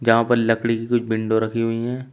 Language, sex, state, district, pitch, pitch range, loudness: Hindi, male, Uttar Pradesh, Shamli, 115 Hz, 115-120 Hz, -20 LUFS